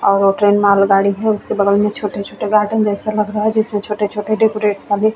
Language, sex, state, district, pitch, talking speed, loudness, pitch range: Hindi, female, Chhattisgarh, Bastar, 210 Hz, 210 wpm, -15 LUFS, 200-215 Hz